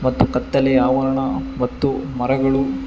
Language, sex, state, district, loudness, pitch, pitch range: Kannada, male, Karnataka, Bangalore, -19 LUFS, 135 Hz, 130-135 Hz